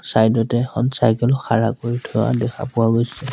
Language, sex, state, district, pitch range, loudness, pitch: Assamese, male, Assam, Sonitpur, 115-125 Hz, -19 LUFS, 120 Hz